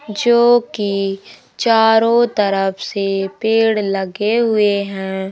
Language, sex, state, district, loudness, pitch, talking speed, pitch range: Hindi, male, Madhya Pradesh, Umaria, -16 LUFS, 210 Hz, 100 wpm, 195-225 Hz